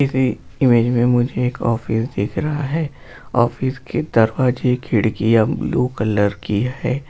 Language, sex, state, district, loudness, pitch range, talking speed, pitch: Hindi, male, Bihar, Jamui, -19 LUFS, 110-130 Hz, 145 wpm, 125 Hz